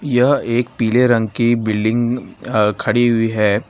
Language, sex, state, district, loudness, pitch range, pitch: Hindi, male, Gujarat, Valsad, -16 LUFS, 110-120 Hz, 120 Hz